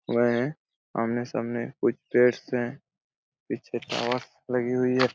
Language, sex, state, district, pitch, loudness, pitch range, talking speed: Hindi, male, Chhattisgarh, Raigarh, 125 Hz, -27 LUFS, 120-125 Hz, 130 wpm